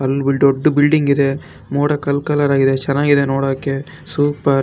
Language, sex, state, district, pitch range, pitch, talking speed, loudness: Kannada, male, Karnataka, Raichur, 135-145 Hz, 140 Hz, 140 wpm, -16 LUFS